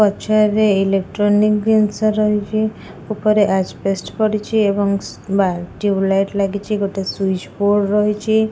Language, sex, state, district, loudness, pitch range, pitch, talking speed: Odia, female, Odisha, Khordha, -17 LUFS, 195-215 Hz, 205 Hz, 120 wpm